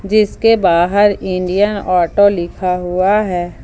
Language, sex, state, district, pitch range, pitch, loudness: Hindi, female, Jharkhand, Ranchi, 180-205 Hz, 190 Hz, -14 LUFS